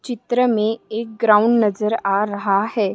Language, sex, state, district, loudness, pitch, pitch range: Hindi, female, Maharashtra, Solapur, -18 LUFS, 215 Hz, 210-230 Hz